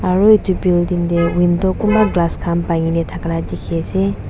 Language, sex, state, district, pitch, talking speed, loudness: Nagamese, female, Nagaland, Dimapur, 170 Hz, 155 wpm, -16 LUFS